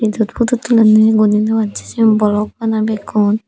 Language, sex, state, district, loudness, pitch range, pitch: Chakma, female, Tripura, Dhalai, -14 LUFS, 210-225 Hz, 220 Hz